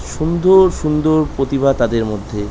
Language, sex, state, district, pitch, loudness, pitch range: Bengali, male, West Bengal, North 24 Parganas, 140 Hz, -15 LUFS, 115-155 Hz